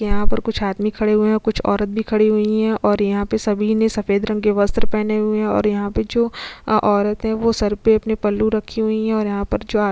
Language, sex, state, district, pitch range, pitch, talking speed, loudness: Hindi, female, Chhattisgarh, Sukma, 210-220 Hz, 215 Hz, 280 wpm, -19 LUFS